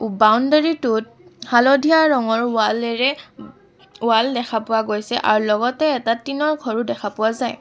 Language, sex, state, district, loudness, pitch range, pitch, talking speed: Assamese, female, Assam, Kamrup Metropolitan, -18 LUFS, 225-270 Hz, 235 Hz, 135 wpm